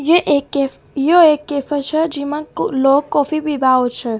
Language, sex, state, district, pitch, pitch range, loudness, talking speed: Rajasthani, female, Rajasthan, Nagaur, 290 Hz, 270-310 Hz, -16 LUFS, 185 wpm